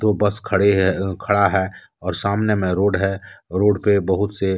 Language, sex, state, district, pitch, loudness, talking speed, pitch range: Hindi, male, Jharkhand, Deoghar, 100 Hz, -19 LUFS, 195 wpm, 95-100 Hz